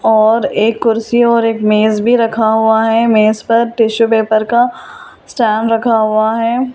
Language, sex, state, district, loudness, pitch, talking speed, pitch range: Hindi, female, Delhi, New Delhi, -12 LUFS, 225 Hz, 170 wpm, 220-230 Hz